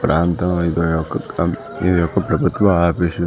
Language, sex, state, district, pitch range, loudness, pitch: Telugu, male, Telangana, Karimnagar, 85-90 Hz, -18 LUFS, 85 Hz